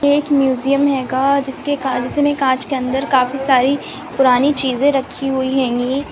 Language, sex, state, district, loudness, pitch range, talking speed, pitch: Hindi, female, Bihar, Vaishali, -16 LUFS, 260-280 Hz, 135 wpm, 270 Hz